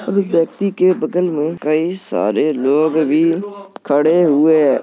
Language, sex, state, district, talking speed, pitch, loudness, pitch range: Hindi, male, Uttar Pradesh, Jalaun, 150 wpm, 165 Hz, -16 LUFS, 155-185 Hz